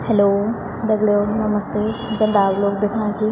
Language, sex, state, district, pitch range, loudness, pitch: Garhwali, female, Uttarakhand, Tehri Garhwal, 205-215 Hz, -18 LUFS, 210 Hz